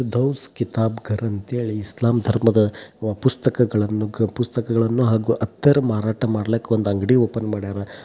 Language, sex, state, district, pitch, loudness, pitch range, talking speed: Kannada, male, Karnataka, Dharwad, 115 Hz, -21 LUFS, 110-120 Hz, 65 wpm